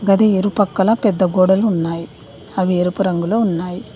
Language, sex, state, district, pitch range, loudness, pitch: Telugu, female, Telangana, Mahabubabad, 175-205 Hz, -16 LUFS, 190 Hz